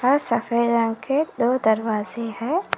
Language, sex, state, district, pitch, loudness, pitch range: Hindi, female, Karnataka, Koppal, 235 Hz, -22 LUFS, 225-270 Hz